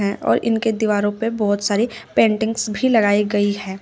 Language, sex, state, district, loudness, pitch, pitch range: Hindi, female, Uttar Pradesh, Shamli, -19 LUFS, 210 Hz, 205-225 Hz